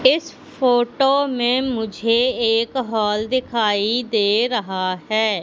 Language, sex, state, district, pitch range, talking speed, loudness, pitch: Hindi, female, Madhya Pradesh, Katni, 215-255 Hz, 110 wpm, -19 LUFS, 235 Hz